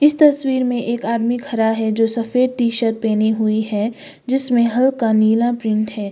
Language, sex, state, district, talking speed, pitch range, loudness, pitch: Hindi, female, Sikkim, Gangtok, 185 wpm, 220-250 Hz, -17 LUFS, 230 Hz